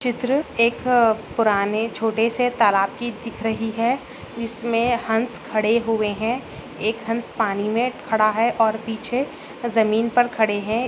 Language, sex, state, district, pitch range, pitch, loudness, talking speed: Hindi, female, Maharashtra, Solapur, 220-240 Hz, 230 Hz, -21 LUFS, 155 wpm